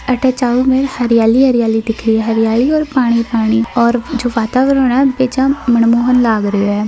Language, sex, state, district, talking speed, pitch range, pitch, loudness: Hindi, female, Rajasthan, Nagaur, 175 wpm, 225-260 Hz, 240 Hz, -13 LUFS